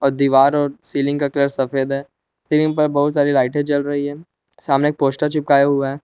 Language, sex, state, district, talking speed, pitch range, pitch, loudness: Hindi, male, Jharkhand, Palamu, 220 wpm, 140-145 Hz, 140 Hz, -18 LUFS